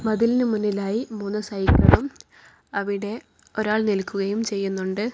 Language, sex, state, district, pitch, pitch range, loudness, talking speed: Malayalam, female, Kerala, Kozhikode, 210 Hz, 200-220 Hz, -23 LUFS, 95 wpm